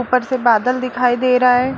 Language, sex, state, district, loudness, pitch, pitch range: Hindi, female, Bihar, Lakhisarai, -15 LUFS, 250 Hz, 245-255 Hz